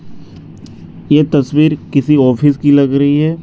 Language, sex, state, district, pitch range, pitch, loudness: Hindi, male, Bihar, Katihar, 140-150 Hz, 145 Hz, -12 LUFS